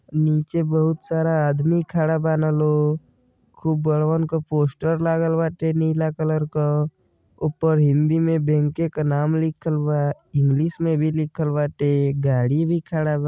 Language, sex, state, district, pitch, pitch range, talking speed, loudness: Bhojpuri, male, Uttar Pradesh, Deoria, 155 Hz, 150-160 Hz, 150 wpm, -21 LUFS